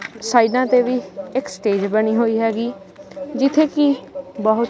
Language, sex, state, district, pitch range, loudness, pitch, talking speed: Punjabi, male, Punjab, Kapurthala, 215-270 Hz, -19 LUFS, 235 Hz, 140 wpm